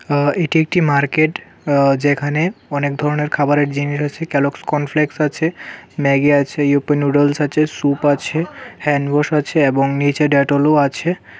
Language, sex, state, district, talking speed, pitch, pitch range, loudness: Bengali, male, Tripura, West Tripura, 155 wpm, 145 Hz, 145-155 Hz, -16 LUFS